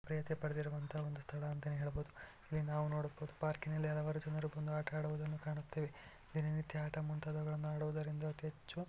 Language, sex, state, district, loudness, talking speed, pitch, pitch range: Kannada, male, Karnataka, Shimoga, -42 LUFS, 150 wpm, 150 Hz, 150-155 Hz